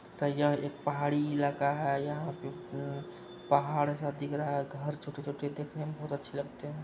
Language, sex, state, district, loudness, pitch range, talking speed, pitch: Hindi, male, Bihar, Araria, -34 LUFS, 140-145 Hz, 185 wpm, 145 Hz